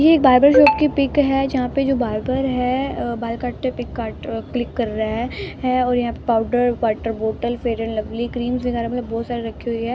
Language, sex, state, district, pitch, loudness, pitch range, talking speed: Hindi, female, Bihar, West Champaran, 245 Hz, -20 LUFS, 230-260 Hz, 230 wpm